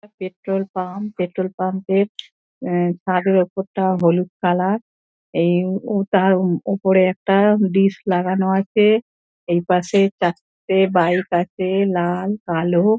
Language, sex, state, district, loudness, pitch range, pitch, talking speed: Bengali, female, West Bengal, Dakshin Dinajpur, -19 LUFS, 180-195 Hz, 190 Hz, 115 wpm